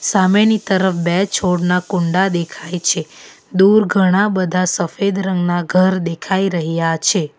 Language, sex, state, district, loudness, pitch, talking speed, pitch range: Gujarati, female, Gujarat, Valsad, -16 LUFS, 185 Hz, 130 wpm, 175-195 Hz